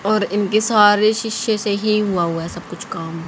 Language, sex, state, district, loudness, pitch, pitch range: Hindi, female, Haryana, Rohtak, -17 LUFS, 205 Hz, 175-215 Hz